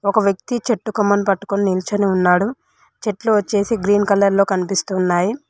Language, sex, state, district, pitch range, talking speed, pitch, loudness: Telugu, female, Telangana, Mahabubabad, 195-215 Hz, 130 wpm, 200 Hz, -18 LUFS